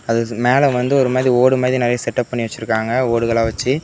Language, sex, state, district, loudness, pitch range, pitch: Tamil, male, Tamil Nadu, Namakkal, -17 LUFS, 115-130 Hz, 125 Hz